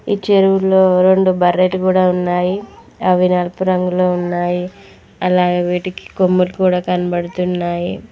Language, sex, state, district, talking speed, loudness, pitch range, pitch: Telugu, female, Telangana, Mahabubabad, 110 wpm, -15 LUFS, 180-185 Hz, 180 Hz